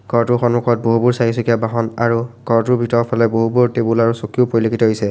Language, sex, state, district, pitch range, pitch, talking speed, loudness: Assamese, male, Assam, Sonitpur, 115-120 Hz, 115 Hz, 175 wpm, -16 LUFS